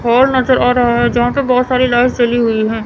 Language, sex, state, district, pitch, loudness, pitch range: Hindi, female, Chandigarh, Chandigarh, 245 Hz, -13 LUFS, 240-255 Hz